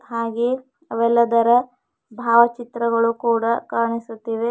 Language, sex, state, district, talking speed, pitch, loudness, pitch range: Kannada, female, Karnataka, Bidar, 80 wpm, 235 Hz, -20 LUFS, 230-240 Hz